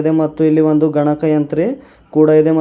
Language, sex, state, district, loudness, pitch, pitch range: Kannada, male, Karnataka, Bidar, -14 LUFS, 155 Hz, 155-160 Hz